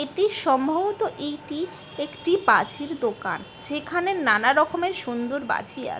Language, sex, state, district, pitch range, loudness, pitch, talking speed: Bengali, female, West Bengal, Kolkata, 285-360 Hz, -24 LUFS, 300 Hz, 120 wpm